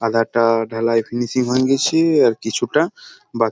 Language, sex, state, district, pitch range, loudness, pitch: Bengali, male, West Bengal, Jalpaiguri, 115-130 Hz, -18 LUFS, 120 Hz